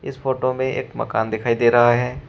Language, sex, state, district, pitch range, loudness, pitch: Hindi, male, Uttar Pradesh, Shamli, 120-130 Hz, -20 LUFS, 125 Hz